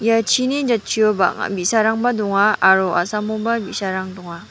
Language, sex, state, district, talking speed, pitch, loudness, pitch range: Garo, female, Meghalaya, West Garo Hills, 135 wpm, 215 Hz, -18 LUFS, 190-225 Hz